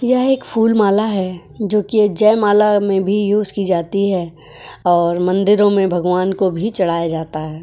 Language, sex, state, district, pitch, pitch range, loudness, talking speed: Hindi, female, Uttar Pradesh, Jyotiba Phule Nagar, 195 Hz, 175-210 Hz, -16 LUFS, 175 wpm